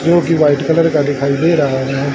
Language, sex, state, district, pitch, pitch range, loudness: Hindi, male, Haryana, Charkhi Dadri, 150 Hz, 140-165 Hz, -14 LUFS